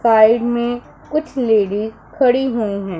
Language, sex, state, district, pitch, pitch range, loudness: Hindi, female, Punjab, Pathankot, 235 Hz, 215-250 Hz, -17 LUFS